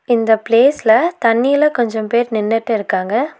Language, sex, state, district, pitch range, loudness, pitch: Tamil, female, Tamil Nadu, Nilgiris, 220-260 Hz, -15 LUFS, 230 Hz